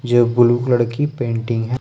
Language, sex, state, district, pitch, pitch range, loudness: Hindi, male, Jharkhand, Ranchi, 120 Hz, 120-125 Hz, -17 LUFS